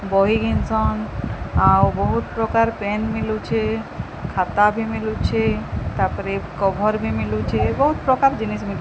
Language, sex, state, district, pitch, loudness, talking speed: Odia, female, Odisha, Sambalpur, 200 Hz, -20 LUFS, 130 wpm